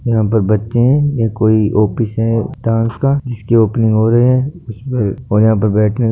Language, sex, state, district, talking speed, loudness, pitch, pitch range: Hindi, male, Rajasthan, Nagaur, 195 wpm, -14 LUFS, 115 Hz, 110-120 Hz